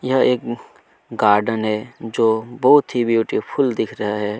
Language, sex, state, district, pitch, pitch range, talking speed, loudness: Hindi, male, Chhattisgarh, Kabirdham, 115 Hz, 105-120 Hz, 165 wpm, -18 LUFS